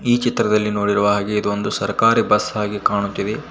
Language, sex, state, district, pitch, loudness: Kannada, male, Karnataka, Koppal, 105 Hz, -18 LUFS